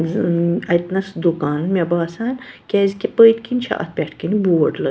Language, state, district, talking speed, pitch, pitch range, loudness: Kashmiri, Punjab, Kapurthala, 205 wpm, 185 Hz, 170-220 Hz, -18 LUFS